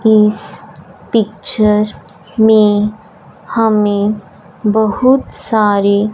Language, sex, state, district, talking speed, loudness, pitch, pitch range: Hindi, female, Punjab, Fazilka, 60 wpm, -13 LUFS, 210 Hz, 205-220 Hz